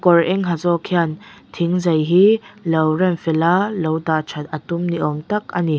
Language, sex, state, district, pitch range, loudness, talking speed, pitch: Mizo, female, Mizoram, Aizawl, 160-180 Hz, -18 LUFS, 215 wpm, 170 Hz